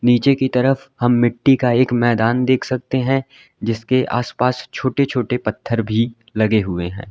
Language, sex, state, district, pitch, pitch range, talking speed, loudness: Hindi, male, Uttar Pradesh, Lalitpur, 125 Hz, 115-130 Hz, 170 wpm, -18 LUFS